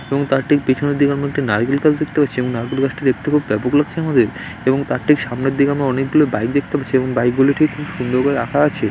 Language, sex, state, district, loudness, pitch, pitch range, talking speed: Bengali, male, West Bengal, Dakshin Dinajpur, -17 LUFS, 140 Hz, 130-145 Hz, 250 wpm